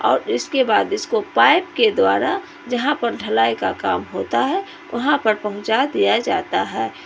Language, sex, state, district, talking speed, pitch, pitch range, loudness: Hindi, female, Jharkhand, Ranchi, 170 wpm, 295 Hz, 235-385 Hz, -19 LUFS